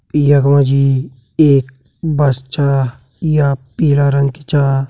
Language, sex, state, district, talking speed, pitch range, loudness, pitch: Hindi, male, Uttarakhand, Tehri Garhwal, 120 wpm, 135-145 Hz, -14 LUFS, 140 Hz